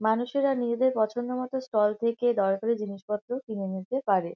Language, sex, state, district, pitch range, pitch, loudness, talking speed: Bengali, female, West Bengal, Kolkata, 210-250 Hz, 230 Hz, -28 LUFS, 150 wpm